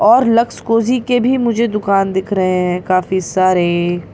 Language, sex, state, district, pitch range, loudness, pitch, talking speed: Hindi, female, Bihar, Katihar, 185-235 Hz, -15 LUFS, 195 Hz, 190 wpm